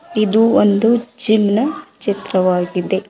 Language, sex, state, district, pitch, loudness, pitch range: Kannada, female, Karnataka, Koppal, 215 Hz, -16 LUFS, 195-235 Hz